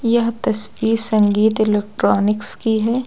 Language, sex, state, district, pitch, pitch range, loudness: Hindi, female, Uttar Pradesh, Lucknow, 220 Hz, 210-225 Hz, -16 LUFS